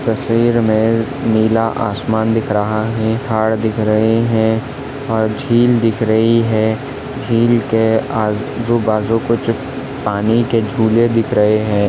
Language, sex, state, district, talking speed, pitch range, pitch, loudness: Hindi, male, Chhattisgarh, Balrampur, 135 wpm, 110-115 Hz, 115 Hz, -15 LUFS